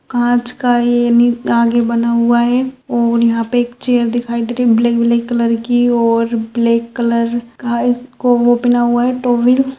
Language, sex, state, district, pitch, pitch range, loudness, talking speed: Hindi, female, Rajasthan, Nagaur, 240 Hz, 235-245 Hz, -14 LUFS, 195 wpm